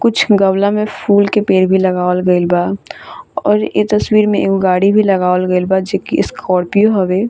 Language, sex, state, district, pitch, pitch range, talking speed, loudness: Bhojpuri, female, Bihar, Saran, 195 Hz, 185-210 Hz, 195 wpm, -13 LUFS